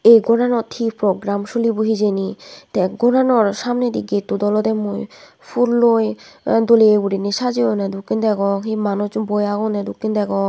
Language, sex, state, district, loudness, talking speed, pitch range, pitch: Chakma, female, Tripura, West Tripura, -18 LUFS, 135 wpm, 205-230 Hz, 215 Hz